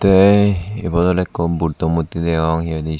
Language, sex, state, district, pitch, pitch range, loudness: Chakma, male, Tripura, Dhalai, 85 Hz, 80-95 Hz, -17 LUFS